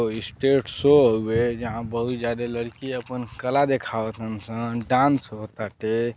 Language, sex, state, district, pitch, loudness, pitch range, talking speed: Bhojpuri, male, Uttar Pradesh, Deoria, 115 Hz, -24 LUFS, 110-125 Hz, 145 wpm